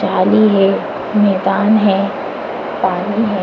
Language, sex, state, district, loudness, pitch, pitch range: Bhojpuri, female, Uttar Pradesh, Gorakhpur, -14 LUFS, 200 Hz, 195-215 Hz